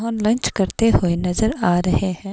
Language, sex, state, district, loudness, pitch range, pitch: Hindi, female, Himachal Pradesh, Shimla, -19 LUFS, 180-225 Hz, 195 Hz